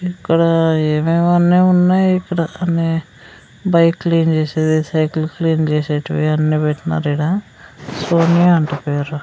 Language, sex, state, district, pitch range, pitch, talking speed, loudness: Telugu, female, Andhra Pradesh, Sri Satya Sai, 155-170 Hz, 165 Hz, 115 wpm, -16 LUFS